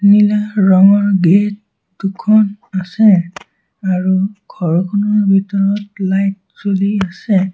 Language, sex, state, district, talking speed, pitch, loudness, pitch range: Assamese, male, Assam, Sonitpur, 90 wpm, 195 Hz, -14 LUFS, 190-205 Hz